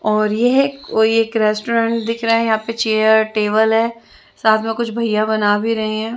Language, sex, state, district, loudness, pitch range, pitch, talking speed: Hindi, female, Chandigarh, Chandigarh, -16 LUFS, 215-230 Hz, 220 Hz, 215 wpm